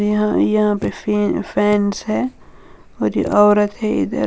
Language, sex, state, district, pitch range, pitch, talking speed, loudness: Hindi, female, Uttar Pradesh, Lalitpur, 205-215 Hz, 210 Hz, 155 wpm, -17 LUFS